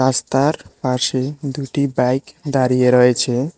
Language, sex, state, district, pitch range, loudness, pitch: Bengali, male, Tripura, West Tripura, 125-140 Hz, -18 LUFS, 130 Hz